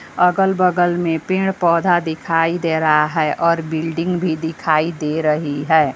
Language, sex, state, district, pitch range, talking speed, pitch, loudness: Hindi, female, Bihar, West Champaran, 155-175 Hz, 160 wpm, 165 Hz, -17 LUFS